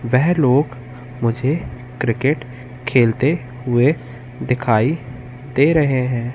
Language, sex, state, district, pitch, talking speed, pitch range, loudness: Hindi, male, Madhya Pradesh, Katni, 125 Hz, 95 wpm, 125-135 Hz, -18 LUFS